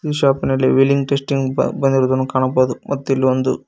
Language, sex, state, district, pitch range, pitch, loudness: Kannada, male, Karnataka, Koppal, 130-140 Hz, 135 Hz, -17 LUFS